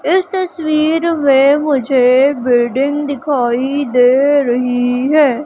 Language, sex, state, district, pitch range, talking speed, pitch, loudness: Hindi, female, Madhya Pradesh, Umaria, 250-300 Hz, 100 wpm, 280 Hz, -13 LUFS